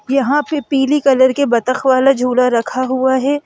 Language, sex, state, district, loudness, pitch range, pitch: Hindi, female, Madhya Pradesh, Bhopal, -14 LUFS, 255-280 Hz, 265 Hz